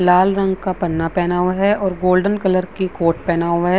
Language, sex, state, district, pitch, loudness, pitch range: Hindi, female, Bihar, Vaishali, 185 Hz, -18 LUFS, 175-190 Hz